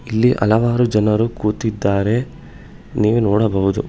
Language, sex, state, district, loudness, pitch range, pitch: Kannada, male, Karnataka, Bangalore, -17 LUFS, 105-120 Hz, 110 Hz